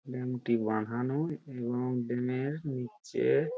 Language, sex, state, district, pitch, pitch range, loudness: Bengali, male, West Bengal, Purulia, 125 Hz, 120-145 Hz, -33 LUFS